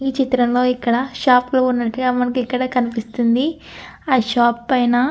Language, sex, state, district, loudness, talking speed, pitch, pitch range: Telugu, female, Andhra Pradesh, Anantapur, -18 LUFS, 150 wpm, 250 Hz, 240-255 Hz